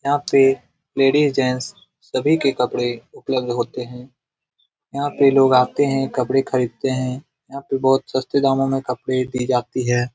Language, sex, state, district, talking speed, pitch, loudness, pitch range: Hindi, male, Bihar, Jamui, 190 wpm, 130 Hz, -19 LUFS, 125-135 Hz